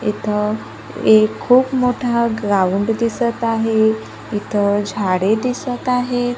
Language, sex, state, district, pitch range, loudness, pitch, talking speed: Marathi, female, Maharashtra, Gondia, 210-245 Hz, -17 LUFS, 225 Hz, 105 wpm